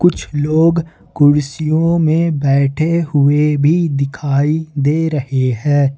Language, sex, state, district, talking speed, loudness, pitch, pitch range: Hindi, male, Jharkhand, Ranchi, 110 wpm, -15 LUFS, 150 Hz, 140-160 Hz